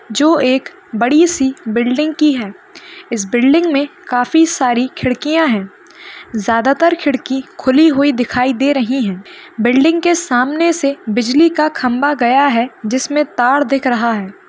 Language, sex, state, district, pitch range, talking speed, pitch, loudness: Hindi, female, Maharashtra, Nagpur, 245-305 Hz, 155 wpm, 265 Hz, -14 LUFS